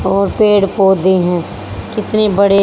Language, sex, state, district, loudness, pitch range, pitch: Hindi, female, Haryana, Rohtak, -13 LUFS, 180-205 Hz, 195 Hz